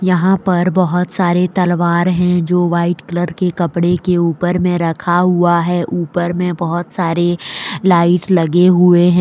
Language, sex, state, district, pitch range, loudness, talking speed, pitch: Hindi, female, Jharkhand, Deoghar, 175-180 Hz, -14 LUFS, 165 wpm, 175 Hz